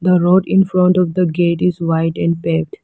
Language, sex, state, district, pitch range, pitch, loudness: English, female, Arunachal Pradesh, Lower Dibang Valley, 165-180 Hz, 175 Hz, -15 LUFS